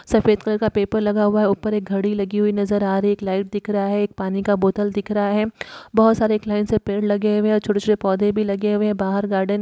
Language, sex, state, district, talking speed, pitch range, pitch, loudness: Hindi, female, Uttar Pradesh, Muzaffarnagar, 285 wpm, 200-210 Hz, 205 Hz, -20 LUFS